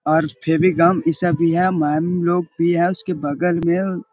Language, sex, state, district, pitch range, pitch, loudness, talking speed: Hindi, male, Bihar, Jahanabad, 165-180 Hz, 170 Hz, -18 LUFS, 205 wpm